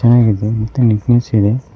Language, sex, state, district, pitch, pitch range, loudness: Kannada, male, Karnataka, Koppal, 115 Hz, 110-120 Hz, -14 LUFS